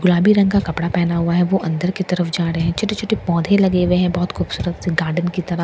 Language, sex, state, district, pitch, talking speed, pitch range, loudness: Hindi, female, Bihar, Katihar, 175 Hz, 275 wpm, 170-190 Hz, -18 LUFS